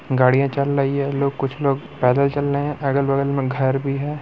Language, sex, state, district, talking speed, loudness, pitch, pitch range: Hindi, male, Bihar, Muzaffarpur, 225 wpm, -20 LUFS, 140 Hz, 135-140 Hz